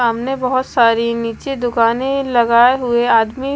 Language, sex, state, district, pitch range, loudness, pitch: Hindi, female, Bihar, West Champaran, 230-260 Hz, -15 LUFS, 240 Hz